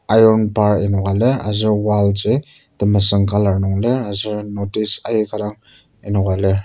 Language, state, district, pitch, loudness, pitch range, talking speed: Ao, Nagaland, Kohima, 105 Hz, -17 LUFS, 100-110 Hz, 155 wpm